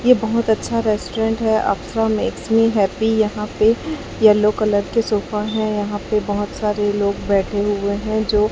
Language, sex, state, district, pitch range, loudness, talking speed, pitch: Hindi, male, Chhattisgarh, Raipur, 205-220 Hz, -19 LUFS, 170 wpm, 215 Hz